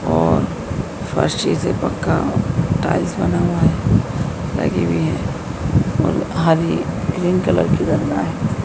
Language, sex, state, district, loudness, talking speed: Hindi, female, Madhya Pradesh, Dhar, -18 LUFS, 120 wpm